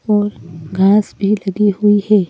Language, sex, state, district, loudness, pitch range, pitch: Hindi, female, Madhya Pradesh, Bhopal, -14 LUFS, 190-210 Hz, 205 Hz